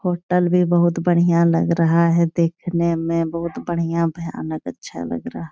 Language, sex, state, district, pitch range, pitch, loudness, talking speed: Hindi, female, Bihar, Jahanabad, 165-170 Hz, 170 Hz, -19 LUFS, 175 wpm